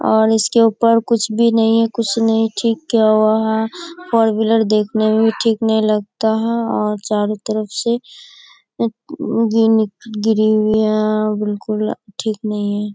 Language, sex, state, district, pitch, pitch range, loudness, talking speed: Hindi, female, Bihar, Kishanganj, 220 Hz, 215-230 Hz, -16 LUFS, 145 wpm